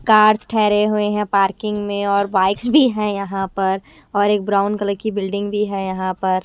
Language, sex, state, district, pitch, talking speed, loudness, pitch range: Hindi, female, Himachal Pradesh, Shimla, 200 Hz, 205 wpm, -18 LUFS, 195-210 Hz